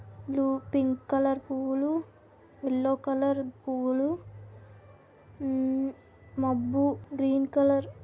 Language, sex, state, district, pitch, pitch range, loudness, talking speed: Telugu, female, Andhra Pradesh, Visakhapatnam, 270 Hz, 255-275 Hz, -29 LUFS, 80 wpm